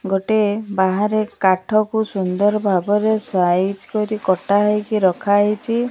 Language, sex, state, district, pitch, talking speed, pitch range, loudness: Odia, female, Odisha, Malkangiri, 205 Hz, 110 wpm, 190-215 Hz, -18 LUFS